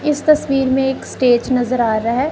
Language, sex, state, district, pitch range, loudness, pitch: Hindi, female, Punjab, Kapurthala, 245-280 Hz, -16 LUFS, 260 Hz